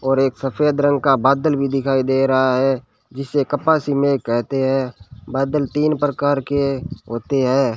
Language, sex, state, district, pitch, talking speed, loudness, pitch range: Hindi, male, Rajasthan, Bikaner, 135 Hz, 170 wpm, -19 LUFS, 130-145 Hz